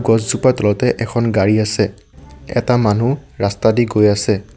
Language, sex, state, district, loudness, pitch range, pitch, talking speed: Assamese, male, Assam, Sonitpur, -16 LUFS, 105-120 Hz, 110 Hz, 145 wpm